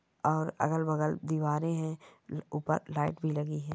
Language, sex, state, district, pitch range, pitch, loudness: Hindi, male, Chhattisgarh, Bastar, 150-160 Hz, 155 Hz, -32 LUFS